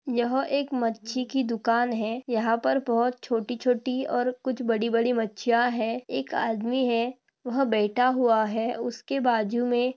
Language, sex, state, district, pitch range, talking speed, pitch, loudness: Hindi, female, Maharashtra, Dhule, 230-255 Hz, 150 wpm, 240 Hz, -26 LUFS